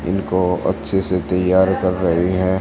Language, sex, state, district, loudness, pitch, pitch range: Hindi, female, Haryana, Charkhi Dadri, -18 LUFS, 90 Hz, 90-95 Hz